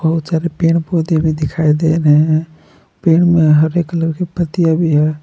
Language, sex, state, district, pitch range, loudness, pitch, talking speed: Hindi, male, Jharkhand, Palamu, 155-165 Hz, -14 LUFS, 160 Hz, 195 wpm